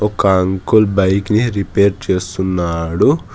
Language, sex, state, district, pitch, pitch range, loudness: Telugu, male, Telangana, Hyderabad, 95 Hz, 95-100 Hz, -15 LUFS